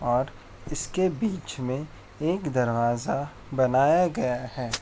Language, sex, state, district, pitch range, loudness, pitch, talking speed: Hindi, male, Uttar Pradesh, Etah, 120-150 Hz, -27 LUFS, 130 Hz, 110 wpm